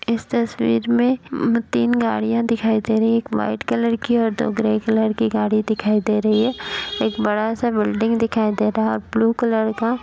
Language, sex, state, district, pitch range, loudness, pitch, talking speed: Hindi, female, Uttar Pradesh, Jyotiba Phule Nagar, 215-230 Hz, -20 LUFS, 220 Hz, 195 wpm